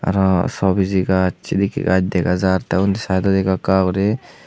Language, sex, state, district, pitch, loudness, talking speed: Chakma, male, Tripura, Unakoti, 95 Hz, -18 LUFS, 190 wpm